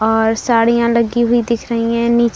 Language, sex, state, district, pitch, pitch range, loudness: Hindi, female, Bihar, Saran, 235 Hz, 230-235 Hz, -15 LUFS